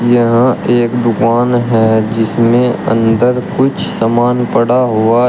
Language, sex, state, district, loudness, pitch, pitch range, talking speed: Hindi, male, Uttar Pradesh, Shamli, -12 LUFS, 120 Hz, 115-125 Hz, 115 wpm